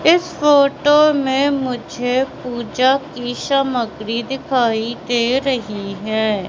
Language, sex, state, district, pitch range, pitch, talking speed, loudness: Hindi, female, Madhya Pradesh, Katni, 235-275 Hz, 255 Hz, 100 wpm, -18 LUFS